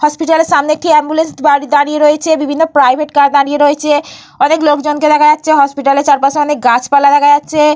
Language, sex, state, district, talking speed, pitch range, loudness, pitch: Bengali, female, Jharkhand, Jamtara, 185 wpm, 285-305 Hz, -10 LUFS, 295 Hz